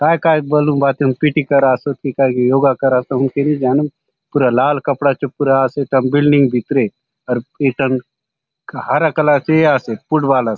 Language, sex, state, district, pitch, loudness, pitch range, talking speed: Halbi, male, Chhattisgarh, Bastar, 140 Hz, -15 LUFS, 130-145 Hz, 200 wpm